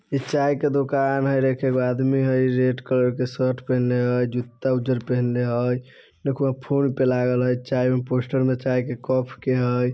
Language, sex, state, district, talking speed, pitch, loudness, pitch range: Bajjika, male, Bihar, Vaishali, 205 wpm, 130 Hz, -22 LUFS, 125-135 Hz